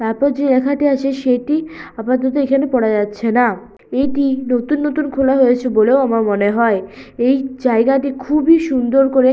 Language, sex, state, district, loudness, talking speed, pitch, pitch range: Bengali, female, West Bengal, Purulia, -16 LUFS, 155 wpm, 265 Hz, 240-275 Hz